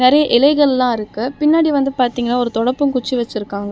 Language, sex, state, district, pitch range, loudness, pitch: Tamil, female, Tamil Nadu, Chennai, 240-280 Hz, -16 LUFS, 250 Hz